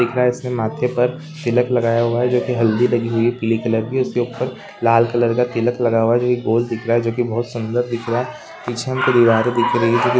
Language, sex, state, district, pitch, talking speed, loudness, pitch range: Hindi, male, Bihar, Muzaffarpur, 120 Hz, 270 wpm, -18 LUFS, 115-125 Hz